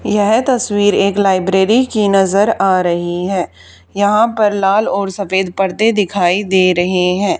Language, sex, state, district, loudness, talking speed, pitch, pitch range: Hindi, female, Haryana, Charkhi Dadri, -14 LUFS, 155 wpm, 195 Hz, 185-205 Hz